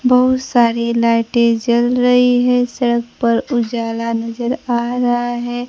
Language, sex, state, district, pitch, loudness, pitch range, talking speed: Hindi, female, Bihar, Kaimur, 240 Hz, -16 LUFS, 235-245 Hz, 135 wpm